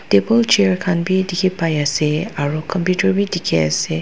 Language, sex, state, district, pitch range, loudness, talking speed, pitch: Nagamese, female, Nagaland, Dimapur, 150-190 Hz, -17 LUFS, 180 wpm, 180 Hz